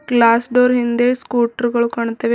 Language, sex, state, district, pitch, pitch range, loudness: Kannada, female, Karnataka, Bidar, 235 Hz, 235-245 Hz, -16 LUFS